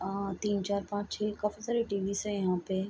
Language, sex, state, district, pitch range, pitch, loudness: Hindi, female, Bihar, Bhagalpur, 195-210 Hz, 200 Hz, -33 LUFS